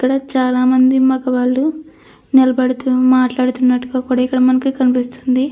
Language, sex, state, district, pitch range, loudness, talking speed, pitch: Telugu, female, Andhra Pradesh, Krishna, 255-260 Hz, -15 LUFS, 100 wpm, 255 Hz